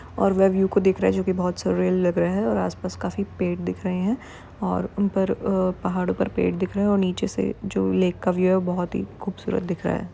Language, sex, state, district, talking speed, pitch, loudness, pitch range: Hindi, female, Uttarakhand, Tehri Garhwal, 270 wpm, 185 Hz, -24 LUFS, 180-195 Hz